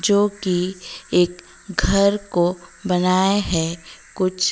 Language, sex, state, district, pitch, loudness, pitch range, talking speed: Hindi, female, Odisha, Malkangiri, 185 Hz, -20 LUFS, 175-200 Hz, 105 wpm